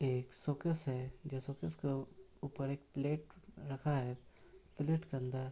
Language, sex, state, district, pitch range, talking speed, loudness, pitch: Hindi, male, Bihar, Supaul, 130-160 Hz, 175 wpm, -40 LUFS, 140 Hz